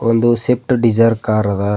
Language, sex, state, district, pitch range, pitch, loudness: Kannada, male, Karnataka, Bidar, 110-120 Hz, 115 Hz, -15 LUFS